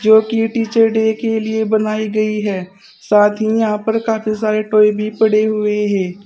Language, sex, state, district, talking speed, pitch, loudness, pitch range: Hindi, female, Uttar Pradesh, Saharanpur, 190 wpm, 215 Hz, -16 LUFS, 210-220 Hz